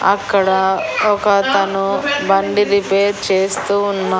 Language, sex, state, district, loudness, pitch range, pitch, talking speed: Telugu, female, Andhra Pradesh, Annamaya, -15 LUFS, 195-200 Hz, 195 Hz, 100 wpm